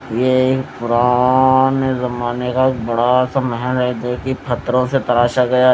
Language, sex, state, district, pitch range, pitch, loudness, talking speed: Hindi, male, Odisha, Nuapada, 120-130 Hz, 125 Hz, -16 LUFS, 155 wpm